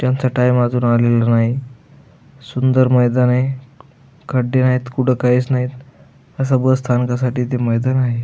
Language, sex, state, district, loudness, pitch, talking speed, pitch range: Marathi, male, Maharashtra, Aurangabad, -16 LUFS, 130 Hz, 125 wpm, 125-130 Hz